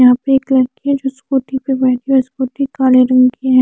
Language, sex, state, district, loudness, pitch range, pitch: Hindi, female, Chandigarh, Chandigarh, -14 LUFS, 255-270 Hz, 265 Hz